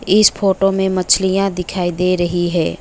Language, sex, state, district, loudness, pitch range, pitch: Hindi, female, West Bengal, Alipurduar, -16 LUFS, 180-195 Hz, 185 Hz